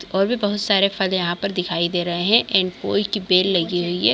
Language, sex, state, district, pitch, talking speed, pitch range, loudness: Hindi, female, Bihar, Kishanganj, 185 Hz, 260 wpm, 175-200 Hz, -19 LUFS